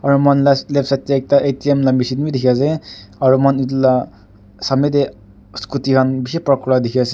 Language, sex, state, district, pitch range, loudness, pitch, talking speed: Nagamese, male, Nagaland, Dimapur, 125-140 Hz, -16 LUFS, 135 Hz, 210 wpm